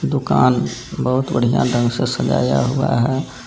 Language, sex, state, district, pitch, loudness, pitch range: Hindi, male, Jharkhand, Garhwa, 125 Hz, -18 LUFS, 120-130 Hz